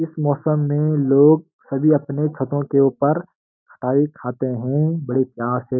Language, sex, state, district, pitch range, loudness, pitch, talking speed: Hindi, male, Uttarakhand, Uttarkashi, 130-150 Hz, -19 LUFS, 145 Hz, 155 wpm